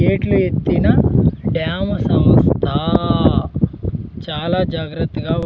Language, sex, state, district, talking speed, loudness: Telugu, male, Andhra Pradesh, Sri Satya Sai, 100 wpm, -17 LUFS